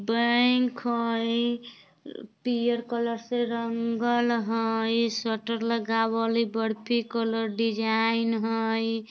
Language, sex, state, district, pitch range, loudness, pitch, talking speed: Bajjika, female, Bihar, Vaishali, 225-235 Hz, -26 LUFS, 230 Hz, 90 wpm